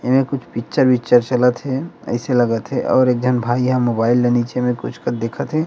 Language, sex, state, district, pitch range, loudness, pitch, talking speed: Chhattisgarhi, male, Chhattisgarh, Rajnandgaon, 120-130 Hz, -18 LUFS, 125 Hz, 220 wpm